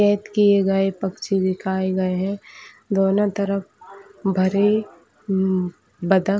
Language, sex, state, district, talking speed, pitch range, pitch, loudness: Hindi, female, Chhattisgarh, Bilaspur, 105 wpm, 190-200 Hz, 195 Hz, -21 LUFS